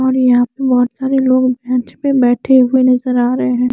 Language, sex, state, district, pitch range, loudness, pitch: Hindi, female, Chandigarh, Chandigarh, 245-260 Hz, -13 LUFS, 255 Hz